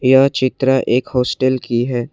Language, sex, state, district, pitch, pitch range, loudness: Hindi, male, Assam, Kamrup Metropolitan, 130 Hz, 125-130 Hz, -16 LUFS